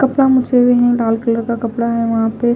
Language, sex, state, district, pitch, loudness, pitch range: Hindi, female, Himachal Pradesh, Shimla, 235 Hz, -15 LUFS, 230-245 Hz